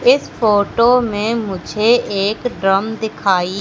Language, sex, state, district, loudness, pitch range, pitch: Hindi, female, Madhya Pradesh, Katni, -16 LUFS, 195-235 Hz, 215 Hz